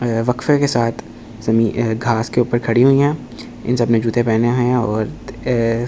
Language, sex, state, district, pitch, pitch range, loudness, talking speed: Hindi, male, Delhi, New Delhi, 120 Hz, 115-125 Hz, -17 LUFS, 175 wpm